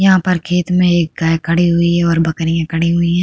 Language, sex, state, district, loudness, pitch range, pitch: Hindi, female, Uttar Pradesh, Hamirpur, -14 LUFS, 165-180 Hz, 170 Hz